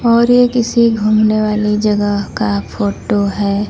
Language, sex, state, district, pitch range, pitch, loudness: Hindi, female, Bihar, West Champaran, 200-230 Hz, 210 Hz, -14 LUFS